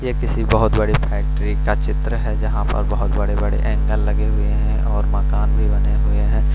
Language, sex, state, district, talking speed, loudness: Hindi, male, Punjab, Fazilka, 210 wpm, -20 LUFS